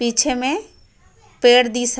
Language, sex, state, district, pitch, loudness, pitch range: Chhattisgarhi, female, Chhattisgarh, Raigarh, 245 Hz, -17 LUFS, 245-270 Hz